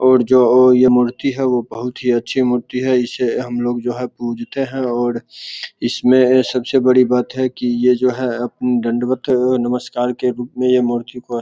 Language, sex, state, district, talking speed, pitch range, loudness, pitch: Hindi, male, Bihar, Begusarai, 190 wpm, 120-130 Hz, -16 LUFS, 125 Hz